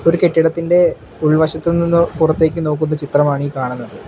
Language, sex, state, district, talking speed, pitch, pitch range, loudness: Malayalam, male, Kerala, Kollam, 115 wpm, 160 Hz, 145-165 Hz, -16 LUFS